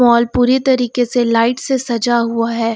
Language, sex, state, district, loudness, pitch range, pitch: Hindi, female, Uttar Pradesh, Lucknow, -15 LUFS, 230-250 Hz, 240 Hz